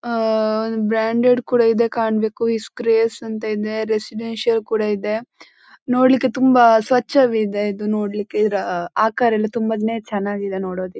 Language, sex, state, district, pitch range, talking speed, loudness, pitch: Kannada, female, Karnataka, Dakshina Kannada, 215-235 Hz, 100 wpm, -19 LUFS, 220 Hz